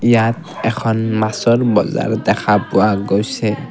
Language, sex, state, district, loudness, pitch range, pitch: Assamese, male, Assam, Kamrup Metropolitan, -16 LUFS, 105-115 Hz, 115 Hz